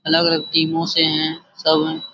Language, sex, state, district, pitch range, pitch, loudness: Hindi, male, Jharkhand, Sahebganj, 155-165 Hz, 160 Hz, -18 LUFS